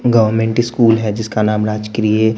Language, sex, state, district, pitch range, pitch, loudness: Hindi, male, Bihar, West Champaran, 105-115 Hz, 110 Hz, -15 LUFS